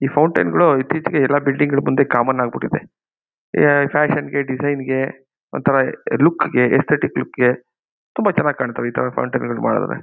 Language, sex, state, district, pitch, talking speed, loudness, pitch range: Kannada, male, Karnataka, Mysore, 140 Hz, 175 wpm, -18 LUFS, 130-145 Hz